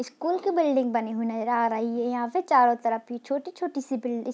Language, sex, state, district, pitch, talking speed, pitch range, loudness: Hindi, female, Bihar, Darbhanga, 245 Hz, 250 wpm, 235-285 Hz, -26 LUFS